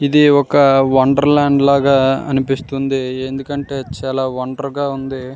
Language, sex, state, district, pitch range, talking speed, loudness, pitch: Telugu, male, Andhra Pradesh, Srikakulam, 135-140 Hz, 125 wpm, -15 LUFS, 135 Hz